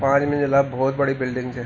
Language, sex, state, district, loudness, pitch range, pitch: Garhwali, male, Uttarakhand, Tehri Garhwal, -21 LUFS, 130-140 Hz, 135 Hz